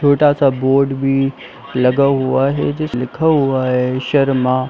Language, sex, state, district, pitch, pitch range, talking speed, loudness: Hindi, male, Jharkhand, Sahebganj, 135 Hz, 130-140 Hz, 155 wpm, -15 LUFS